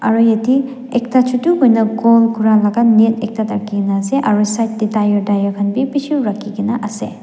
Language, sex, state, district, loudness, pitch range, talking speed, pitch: Nagamese, female, Nagaland, Dimapur, -15 LUFS, 210-245 Hz, 175 wpm, 220 Hz